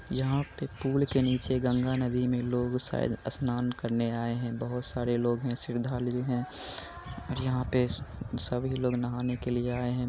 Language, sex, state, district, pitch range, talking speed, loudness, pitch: Hindi, male, Bihar, Jamui, 120-125 Hz, 180 wpm, -31 LUFS, 125 Hz